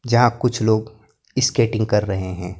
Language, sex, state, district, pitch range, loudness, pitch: Hindi, male, Maharashtra, Gondia, 105-120 Hz, -20 LUFS, 110 Hz